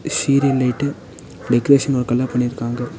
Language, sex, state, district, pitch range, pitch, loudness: Tamil, male, Tamil Nadu, Nilgiris, 120-140 Hz, 130 Hz, -18 LUFS